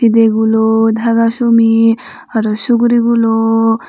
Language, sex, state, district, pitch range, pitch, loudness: Chakma, female, Tripura, Unakoti, 225-230 Hz, 225 Hz, -12 LUFS